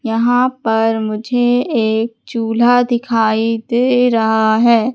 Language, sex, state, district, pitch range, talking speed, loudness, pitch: Hindi, female, Madhya Pradesh, Katni, 225-245 Hz, 110 wpm, -15 LUFS, 230 Hz